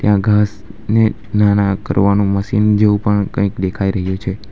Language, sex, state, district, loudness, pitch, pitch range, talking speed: Gujarati, male, Gujarat, Valsad, -15 LUFS, 105 Hz, 100-105 Hz, 145 wpm